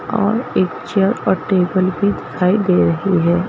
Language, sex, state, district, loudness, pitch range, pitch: Hindi, female, Madhya Pradesh, Bhopal, -17 LUFS, 180-205 Hz, 185 Hz